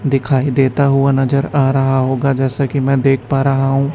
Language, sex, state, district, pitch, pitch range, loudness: Hindi, male, Chhattisgarh, Raipur, 135 Hz, 135-140 Hz, -15 LUFS